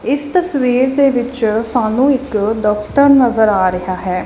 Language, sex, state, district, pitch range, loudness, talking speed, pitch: Punjabi, female, Punjab, Kapurthala, 210-275 Hz, -14 LUFS, 155 wpm, 245 Hz